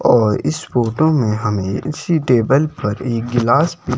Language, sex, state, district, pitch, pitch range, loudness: Hindi, male, Himachal Pradesh, Shimla, 125 Hz, 115-155 Hz, -17 LUFS